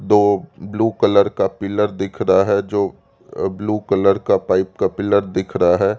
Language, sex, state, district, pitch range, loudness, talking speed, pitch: Hindi, male, Delhi, New Delhi, 100-105 Hz, -18 LUFS, 180 wpm, 100 Hz